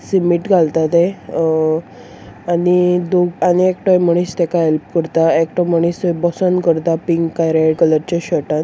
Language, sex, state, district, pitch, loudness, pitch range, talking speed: Konkani, female, Goa, North and South Goa, 170 Hz, -15 LUFS, 165-180 Hz, 160 wpm